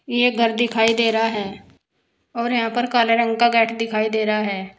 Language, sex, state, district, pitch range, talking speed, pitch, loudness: Hindi, female, Uttar Pradesh, Saharanpur, 215-235 Hz, 215 wpm, 230 Hz, -19 LUFS